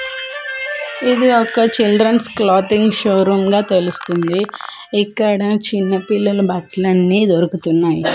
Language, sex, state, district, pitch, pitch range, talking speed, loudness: Telugu, female, Andhra Pradesh, Manyam, 205 Hz, 190-225 Hz, 105 wpm, -15 LUFS